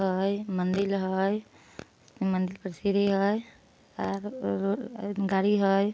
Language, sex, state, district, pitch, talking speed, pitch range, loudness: Magahi, female, Bihar, Samastipur, 195 Hz, 100 wpm, 190-200 Hz, -28 LUFS